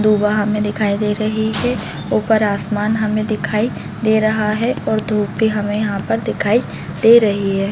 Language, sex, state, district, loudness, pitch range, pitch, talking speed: Hindi, female, Chhattisgarh, Bilaspur, -17 LUFS, 210-220 Hz, 215 Hz, 180 wpm